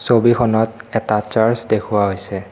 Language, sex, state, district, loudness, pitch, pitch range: Assamese, male, Assam, Kamrup Metropolitan, -17 LUFS, 110 Hz, 105-115 Hz